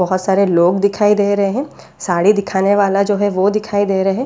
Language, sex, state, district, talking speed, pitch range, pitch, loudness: Hindi, female, Delhi, New Delhi, 240 wpm, 190-205 Hz, 200 Hz, -15 LUFS